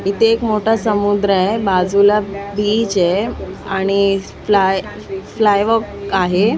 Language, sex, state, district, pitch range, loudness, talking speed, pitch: Marathi, female, Maharashtra, Mumbai Suburban, 195-215 Hz, -16 LUFS, 120 wpm, 200 Hz